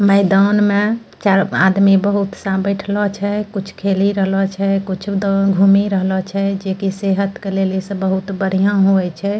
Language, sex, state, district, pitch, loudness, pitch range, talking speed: Angika, female, Bihar, Bhagalpur, 195 Hz, -16 LUFS, 195-200 Hz, 165 wpm